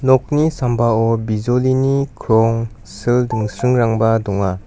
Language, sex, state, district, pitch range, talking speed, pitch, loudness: Garo, male, Meghalaya, West Garo Hills, 110-125 Hz, 90 wpm, 115 Hz, -17 LUFS